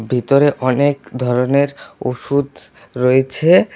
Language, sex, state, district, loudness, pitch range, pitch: Bengali, male, West Bengal, Alipurduar, -16 LUFS, 125-140 Hz, 135 Hz